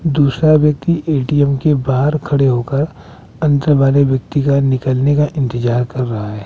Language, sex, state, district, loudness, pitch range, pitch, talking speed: Hindi, male, Bihar, West Champaran, -15 LUFS, 130-150 Hz, 140 Hz, 150 wpm